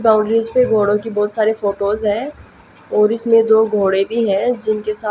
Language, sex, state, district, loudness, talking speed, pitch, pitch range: Hindi, female, Haryana, Jhajjar, -16 LUFS, 190 wpm, 215 Hz, 210-225 Hz